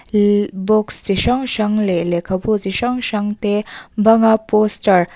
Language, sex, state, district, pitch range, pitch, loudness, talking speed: Mizo, female, Mizoram, Aizawl, 195-220 Hz, 210 Hz, -17 LUFS, 175 wpm